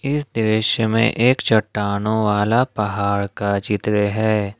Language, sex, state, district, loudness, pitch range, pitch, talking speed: Hindi, male, Jharkhand, Ranchi, -19 LUFS, 105-115 Hz, 110 Hz, 130 wpm